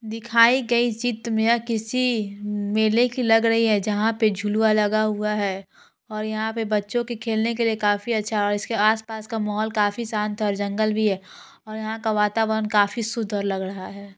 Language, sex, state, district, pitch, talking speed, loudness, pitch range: Hindi, female, Bihar, Muzaffarpur, 215 Hz, 205 wpm, -22 LUFS, 210-225 Hz